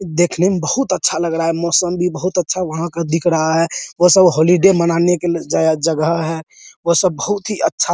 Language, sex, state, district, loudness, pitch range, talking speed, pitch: Hindi, male, Bihar, Araria, -16 LUFS, 165-180 Hz, 220 wpm, 170 Hz